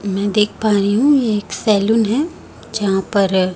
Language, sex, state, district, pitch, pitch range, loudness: Hindi, female, Chhattisgarh, Raipur, 210 Hz, 200-220 Hz, -16 LUFS